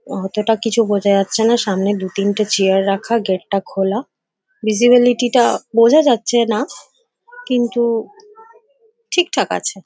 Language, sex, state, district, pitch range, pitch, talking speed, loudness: Bengali, female, West Bengal, Paschim Medinipur, 200-265 Hz, 230 Hz, 145 wpm, -16 LUFS